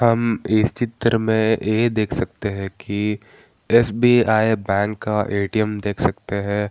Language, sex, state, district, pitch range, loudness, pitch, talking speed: Hindi, male, Bihar, Gaya, 105-115 Hz, -20 LUFS, 110 Hz, 150 wpm